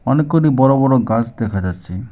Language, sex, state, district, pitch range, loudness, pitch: Bengali, male, West Bengal, Alipurduar, 105-135 Hz, -15 LUFS, 120 Hz